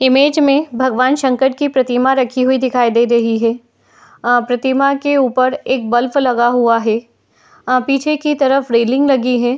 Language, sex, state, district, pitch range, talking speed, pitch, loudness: Hindi, female, Uttar Pradesh, Jalaun, 245-275 Hz, 175 wpm, 260 Hz, -14 LUFS